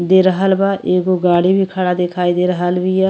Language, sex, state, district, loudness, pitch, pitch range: Bhojpuri, female, Uttar Pradesh, Deoria, -15 LUFS, 185 Hz, 180-190 Hz